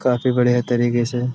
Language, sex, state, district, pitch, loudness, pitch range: Hindi, male, Uttar Pradesh, Budaun, 120 Hz, -19 LUFS, 120-125 Hz